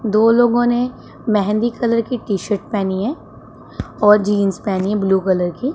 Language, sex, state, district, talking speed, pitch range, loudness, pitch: Hindi, female, Punjab, Pathankot, 175 wpm, 195-235 Hz, -17 LUFS, 210 Hz